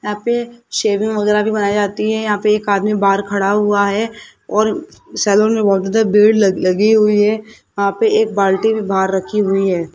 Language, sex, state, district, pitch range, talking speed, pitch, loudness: Hindi, male, Rajasthan, Jaipur, 200-215 Hz, 210 wpm, 210 Hz, -15 LUFS